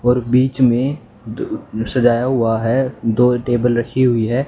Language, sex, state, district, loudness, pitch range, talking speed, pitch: Hindi, male, Haryana, Charkhi Dadri, -17 LUFS, 115-130 Hz, 160 wpm, 125 Hz